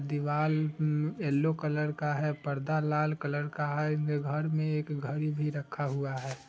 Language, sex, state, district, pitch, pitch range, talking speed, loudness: Hindi, male, Bihar, Vaishali, 150 Hz, 145-150 Hz, 175 wpm, -31 LUFS